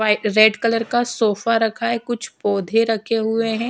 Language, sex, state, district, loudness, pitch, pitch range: Hindi, female, Chhattisgarh, Raipur, -19 LUFS, 225 Hz, 215-230 Hz